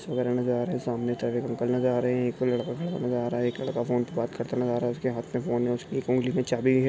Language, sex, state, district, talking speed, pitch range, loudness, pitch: Hindi, male, Maharashtra, Aurangabad, 305 wpm, 120-125 Hz, -28 LUFS, 125 Hz